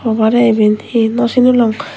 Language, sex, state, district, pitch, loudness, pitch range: Chakma, female, Tripura, West Tripura, 230 Hz, -12 LUFS, 220-240 Hz